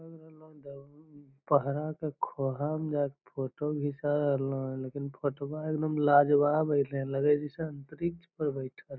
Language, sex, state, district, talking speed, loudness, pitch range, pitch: Magahi, male, Bihar, Lakhisarai, 140 wpm, -31 LUFS, 140-155 Hz, 145 Hz